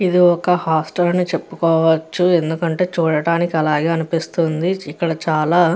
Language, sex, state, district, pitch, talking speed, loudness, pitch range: Telugu, female, Andhra Pradesh, Guntur, 165 Hz, 125 wpm, -17 LUFS, 160-175 Hz